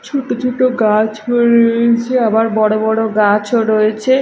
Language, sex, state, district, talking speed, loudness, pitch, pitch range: Bengali, female, Odisha, Malkangiri, 140 wpm, -13 LUFS, 225 Hz, 215-240 Hz